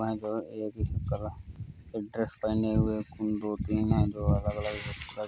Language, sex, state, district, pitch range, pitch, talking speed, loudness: Hindi, male, Uttar Pradesh, Varanasi, 105-110 Hz, 105 Hz, 125 wpm, -31 LUFS